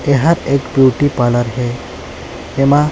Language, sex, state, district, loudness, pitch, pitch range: Hindi, male, Chhattisgarh, Sarguja, -14 LUFS, 130 Hz, 120-145 Hz